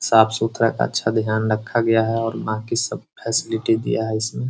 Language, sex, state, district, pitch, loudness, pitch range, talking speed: Hindi, male, Bihar, Muzaffarpur, 110 Hz, -21 LUFS, 110-115 Hz, 175 wpm